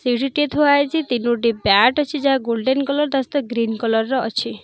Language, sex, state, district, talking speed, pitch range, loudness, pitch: Odia, female, Odisha, Nuapada, 205 wpm, 235-285 Hz, -18 LUFS, 260 Hz